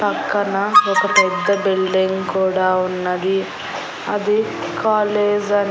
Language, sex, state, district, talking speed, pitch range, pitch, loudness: Telugu, female, Andhra Pradesh, Annamaya, 95 wpm, 185-205 Hz, 200 Hz, -18 LUFS